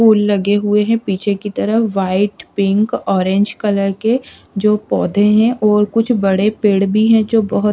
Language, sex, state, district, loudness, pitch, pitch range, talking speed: Hindi, female, Odisha, Sambalpur, -15 LUFS, 210 Hz, 200-220 Hz, 180 wpm